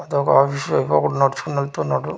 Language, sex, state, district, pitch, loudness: Telugu, male, Andhra Pradesh, Manyam, 110 Hz, -19 LUFS